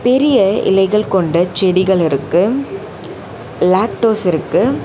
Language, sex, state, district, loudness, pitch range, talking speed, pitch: Tamil, female, Tamil Nadu, Chennai, -14 LUFS, 180-220 Hz, 85 wpm, 190 Hz